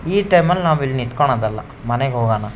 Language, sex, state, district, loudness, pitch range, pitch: Kannada, male, Karnataka, Shimoga, -17 LUFS, 120-165 Hz, 135 Hz